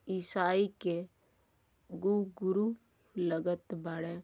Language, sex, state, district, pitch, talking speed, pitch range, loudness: Bhojpuri, male, Uttar Pradesh, Gorakhpur, 175 Hz, 85 wpm, 165-195 Hz, -34 LUFS